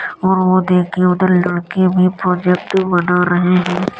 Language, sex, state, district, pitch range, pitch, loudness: Hindi, male, Uttar Pradesh, Jyotiba Phule Nagar, 180-185 Hz, 180 Hz, -14 LUFS